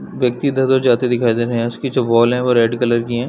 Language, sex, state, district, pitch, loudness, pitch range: Hindi, male, Chhattisgarh, Bilaspur, 120 Hz, -16 LUFS, 120-130 Hz